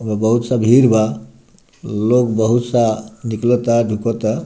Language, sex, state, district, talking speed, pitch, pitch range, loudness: Bhojpuri, male, Bihar, Muzaffarpur, 150 wpm, 115 Hz, 110-120 Hz, -16 LUFS